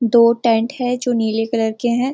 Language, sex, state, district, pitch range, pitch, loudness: Hindi, female, Uttarakhand, Uttarkashi, 225-245 Hz, 235 Hz, -17 LUFS